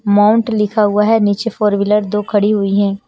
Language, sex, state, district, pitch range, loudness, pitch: Hindi, female, Himachal Pradesh, Shimla, 205-215 Hz, -14 LUFS, 210 Hz